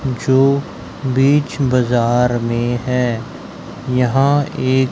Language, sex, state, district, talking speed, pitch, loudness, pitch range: Hindi, male, Madhya Pradesh, Dhar, 85 wpm, 130 Hz, -16 LUFS, 120-135 Hz